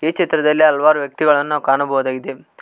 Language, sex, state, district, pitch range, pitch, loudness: Kannada, male, Karnataka, Koppal, 140-155 Hz, 150 Hz, -16 LUFS